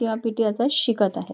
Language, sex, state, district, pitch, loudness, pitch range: Marathi, female, Maharashtra, Nagpur, 225 Hz, -22 LUFS, 210-235 Hz